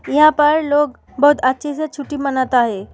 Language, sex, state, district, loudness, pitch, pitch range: Hindi, female, Bihar, Samastipur, -16 LUFS, 290 Hz, 260-295 Hz